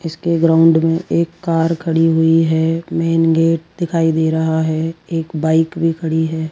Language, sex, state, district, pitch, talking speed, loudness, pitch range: Hindi, female, Rajasthan, Jaipur, 165 Hz, 175 wpm, -16 LUFS, 160-165 Hz